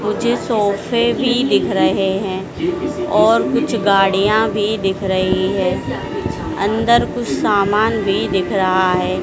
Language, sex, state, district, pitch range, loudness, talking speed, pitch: Hindi, female, Madhya Pradesh, Dhar, 190-230 Hz, -16 LUFS, 130 wpm, 205 Hz